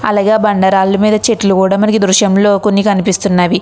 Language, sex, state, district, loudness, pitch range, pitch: Telugu, female, Andhra Pradesh, Krishna, -11 LUFS, 195-210 Hz, 200 Hz